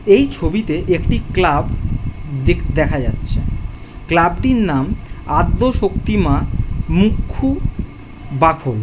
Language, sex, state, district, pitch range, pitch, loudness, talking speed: Bengali, male, West Bengal, Jhargram, 110-165 Hz, 135 Hz, -17 LUFS, 100 wpm